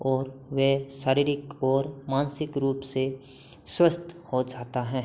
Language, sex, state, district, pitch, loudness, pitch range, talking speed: Hindi, male, Uttar Pradesh, Hamirpur, 135 Hz, -27 LUFS, 130-140 Hz, 130 wpm